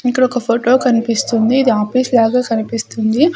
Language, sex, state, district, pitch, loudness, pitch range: Telugu, female, Andhra Pradesh, Sri Satya Sai, 240 Hz, -14 LUFS, 230-255 Hz